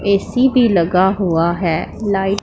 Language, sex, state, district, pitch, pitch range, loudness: Hindi, female, Punjab, Pathankot, 195 Hz, 175-200 Hz, -16 LUFS